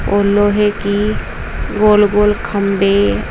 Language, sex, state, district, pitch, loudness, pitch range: Hindi, female, Uttar Pradesh, Saharanpur, 205 Hz, -14 LUFS, 200-210 Hz